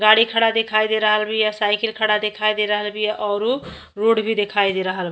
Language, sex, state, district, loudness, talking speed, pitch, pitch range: Bhojpuri, female, Uttar Pradesh, Ghazipur, -19 LUFS, 235 wpm, 215 Hz, 210-220 Hz